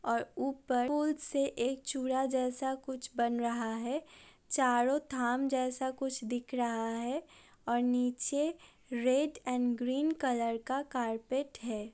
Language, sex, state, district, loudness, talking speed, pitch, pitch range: Hindi, female, Uttar Pradesh, Budaun, -34 LUFS, 135 wpm, 255 Hz, 240-270 Hz